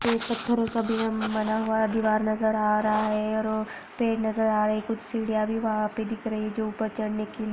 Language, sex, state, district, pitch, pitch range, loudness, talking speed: Hindi, female, Maharashtra, Aurangabad, 220 Hz, 215-225 Hz, -27 LUFS, 215 wpm